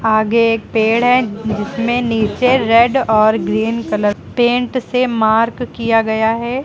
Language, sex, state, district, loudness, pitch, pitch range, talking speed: Hindi, female, Uttar Pradesh, Lucknow, -15 LUFS, 230 Hz, 220-245 Hz, 145 wpm